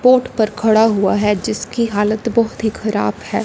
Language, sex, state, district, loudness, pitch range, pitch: Hindi, male, Punjab, Fazilka, -16 LUFS, 210-230 Hz, 220 Hz